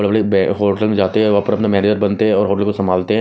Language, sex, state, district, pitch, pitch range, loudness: Hindi, male, Odisha, Nuapada, 105 Hz, 100-105 Hz, -15 LUFS